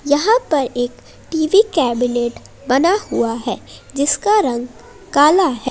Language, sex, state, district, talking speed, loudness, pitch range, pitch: Hindi, female, Jharkhand, Palamu, 125 wpm, -16 LUFS, 245-375 Hz, 290 Hz